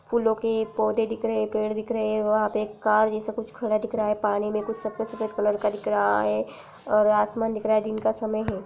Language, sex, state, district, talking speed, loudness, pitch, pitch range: Hindi, female, Uttar Pradesh, Jalaun, 255 wpm, -25 LUFS, 215 Hz, 210-220 Hz